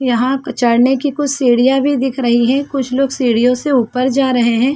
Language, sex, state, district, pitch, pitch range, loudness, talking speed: Hindi, female, Chhattisgarh, Sarguja, 260 Hz, 245-275 Hz, -14 LUFS, 215 wpm